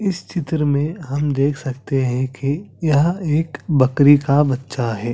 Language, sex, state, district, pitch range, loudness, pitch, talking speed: Hindi, male, Chhattisgarh, Sarguja, 135-155 Hz, -19 LUFS, 145 Hz, 175 wpm